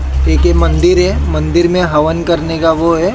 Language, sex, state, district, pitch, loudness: Hindi, male, Maharashtra, Mumbai Suburban, 160 Hz, -12 LUFS